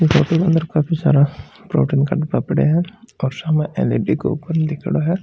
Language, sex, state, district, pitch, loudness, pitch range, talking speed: Marwari, male, Rajasthan, Churu, 160 Hz, -18 LUFS, 150-165 Hz, 220 wpm